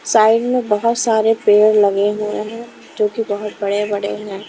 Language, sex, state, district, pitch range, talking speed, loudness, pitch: Hindi, female, Himachal Pradesh, Shimla, 205-225 Hz, 160 wpm, -16 LUFS, 210 Hz